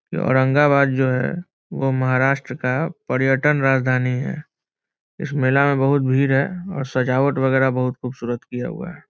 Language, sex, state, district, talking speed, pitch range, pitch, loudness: Hindi, male, Bihar, Muzaffarpur, 160 wpm, 130-145 Hz, 135 Hz, -20 LUFS